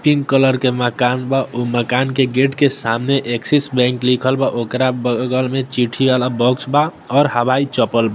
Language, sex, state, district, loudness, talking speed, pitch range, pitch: Maithili, male, Bihar, Samastipur, -16 LUFS, 190 wpm, 125-135 Hz, 130 Hz